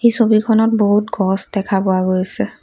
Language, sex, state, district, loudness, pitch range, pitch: Assamese, female, Assam, Kamrup Metropolitan, -16 LUFS, 190-220 Hz, 205 Hz